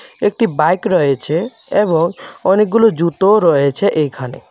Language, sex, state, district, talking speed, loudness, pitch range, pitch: Bengali, male, Tripura, West Tripura, 120 wpm, -14 LUFS, 155-210 Hz, 185 Hz